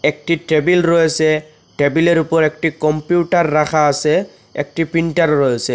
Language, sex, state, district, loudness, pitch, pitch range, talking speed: Bengali, male, Assam, Hailakandi, -15 LUFS, 155 Hz, 150-165 Hz, 125 wpm